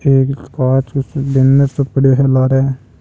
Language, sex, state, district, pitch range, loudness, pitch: Hindi, male, Rajasthan, Nagaur, 130-135 Hz, -14 LUFS, 135 Hz